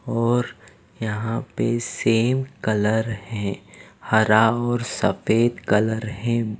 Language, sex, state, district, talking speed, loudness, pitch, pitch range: Hindi, male, Punjab, Fazilka, 100 wpm, -22 LUFS, 110 Hz, 110-120 Hz